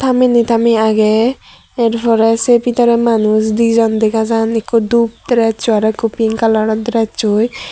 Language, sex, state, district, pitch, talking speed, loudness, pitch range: Chakma, female, Tripura, Dhalai, 225 Hz, 140 wpm, -13 LUFS, 220-235 Hz